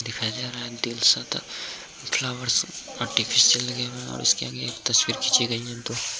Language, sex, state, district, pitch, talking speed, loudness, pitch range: Hindi, male, Uttar Pradesh, Jyotiba Phule Nagar, 120 Hz, 205 wpm, -23 LUFS, 115-125 Hz